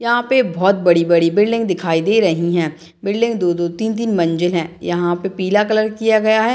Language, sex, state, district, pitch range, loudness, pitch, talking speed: Hindi, female, Bihar, Madhepura, 170-220 Hz, -16 LUFS, 190 Hz, 190 wpm